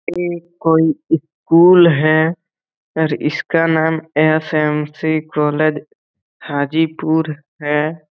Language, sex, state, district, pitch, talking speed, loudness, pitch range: Hindi, male, Jharkhand, Jamtara, 160 Hz, 80 wpm, -16 LUFS, 150-165 Hz